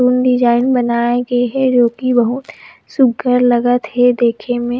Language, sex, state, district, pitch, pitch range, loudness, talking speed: Chhattisgarhi, female, Chhattisgarh, Rajnandgaon, 245 Hz, 240-250 Hz, -14 LUFS, 160 wpm